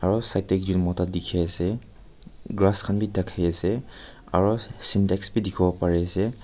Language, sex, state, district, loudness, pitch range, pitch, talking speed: Nagamese, male, Nagaland, Kohima, -22 LUFS, 90-105 Hz, 95 Hz, 170 wpm